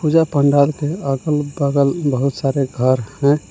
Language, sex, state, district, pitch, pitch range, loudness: Hindi, male, Jharkhand, Palamu, 140 Hz, 135-145 Hz, -17 LUFS